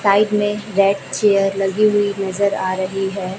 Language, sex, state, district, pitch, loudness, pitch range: Hindi, female, Chhattisgarh, Raipur, 200 Hz, -18 LUFS, 195-205 Hz